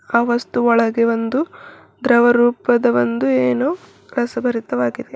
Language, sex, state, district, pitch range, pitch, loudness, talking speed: Kannada, female, Karnataka, Bidar, 225-240 Hz, 235 Hz, -17 LUFS, 105 wpm